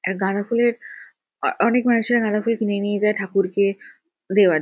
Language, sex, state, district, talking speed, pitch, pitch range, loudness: Bengali, female, West Bengal, Kolkata, 145 wpm, 210 Hz, 195-235 Hz, -20 LUFS